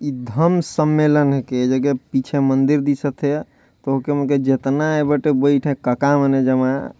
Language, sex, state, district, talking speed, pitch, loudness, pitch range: Chhattisgarhi, male, Chhattisgarh, Jashpur, 155 wpm, 140 Hz, -18 LUFS, 135-145 Hz